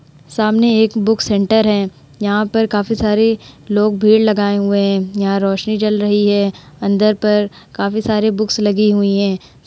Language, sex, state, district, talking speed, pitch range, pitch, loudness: Hindi, female, Uttar Pradesh, Hamirpur, 170 wpm, 200-215 Hz, 205 Hz, -15 LUFS